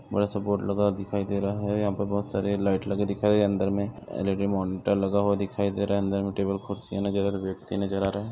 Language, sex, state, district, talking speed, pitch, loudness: Hindi, male, Goa, North and South Goa, 290 wpm, 100 Hz, -27 LUFS